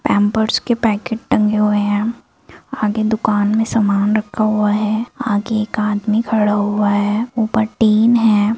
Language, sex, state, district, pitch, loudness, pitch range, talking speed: Hindi, female, Bihar, Gaya, 215 Hz, -16 LUFS, 210-220 Hz, 155 wpm